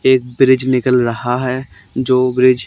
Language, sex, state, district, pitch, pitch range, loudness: Hindi, male, Haryana, Charkhi Dadri, 125 Hz, 125-130 Hz, -15 LUFS